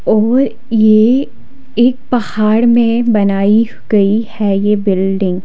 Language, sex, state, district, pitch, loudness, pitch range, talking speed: Hindi, female, Himachal Pradesh, Shimla, 220 Hz, -12 LUFS, 205-235 Hz, 120 wpm